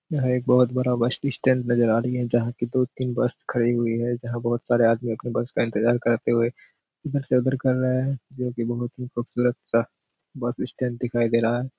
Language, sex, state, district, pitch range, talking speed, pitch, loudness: Hindi, male, Bihar, Kishanganj, 120-125 Hz, 230 wpm, 120 Hz, -24 LUFS